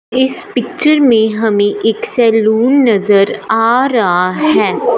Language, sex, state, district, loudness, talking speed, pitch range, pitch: Hindi, female, Punjab, Fazilka, -12 LUFS, 120 wpm, 215-260 Hz, 225 Hz